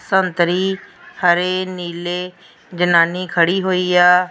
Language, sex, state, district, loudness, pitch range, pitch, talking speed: Punjabi, female, Punjab, Fazilka, -17 LUFS, 175-185 Hz, 180 Hz, 95 wpm